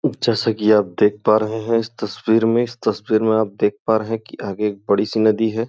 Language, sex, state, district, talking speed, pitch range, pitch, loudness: Hindi, male, Uttar Pradesh, Gorakhpur, 265 wpm, 105-115 Hz, 110 Hz, -19 LUFS